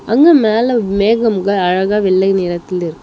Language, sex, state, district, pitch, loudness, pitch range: Tamil, female, Tamil Nadu, Chennai, 200 Hz, -13 LUFS, 185-225 Hz